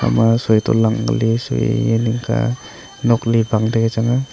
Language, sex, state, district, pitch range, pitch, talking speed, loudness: Wancho, male, Arunachal Pradesh, Longding, 110-115 Hz, 115 Hz, 180 wpm, -17 LUFS